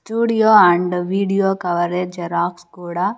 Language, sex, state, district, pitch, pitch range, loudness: Telugu, female, Andhra Pradesh, Sri Satya Sai, 180 Hz, 175-200 Hz, -17 LUFS